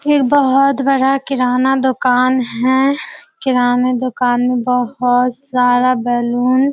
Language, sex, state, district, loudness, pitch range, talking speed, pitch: Hindi, female, Bihar, Kishanganj, -14 LUFS, 250-270 Hz, 125 wpm, 255 Hz